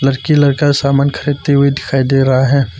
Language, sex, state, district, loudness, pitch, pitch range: Hindi, male, Arunachal Pradesh, Papum Pare, -13 LUFS, 140 Hz, 135-145 Hz